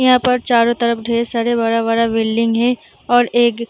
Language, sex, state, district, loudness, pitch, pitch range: Hindi, female, Bihar, Darbhanga, -16 LUFS, 235 Hz, 230-245 Hz